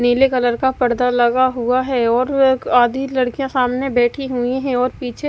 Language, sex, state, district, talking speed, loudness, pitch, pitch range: Hindi, female, Odisha, Malkangiri, 195 wpm, -17 LUFS, 255 Hz, 245-265 Hz